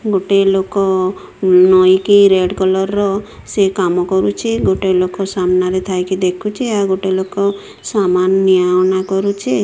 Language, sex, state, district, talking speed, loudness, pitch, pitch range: Odia, female, Odisha, Sambalpur, 135 wpm, -14 LUFS, 190 Hz, 185-200 Hz